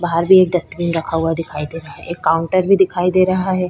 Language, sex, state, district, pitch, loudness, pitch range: Hindi, female, Uttar Pradesh, Budaun, 175 Hz, -16 LUFS, 165-185 Hz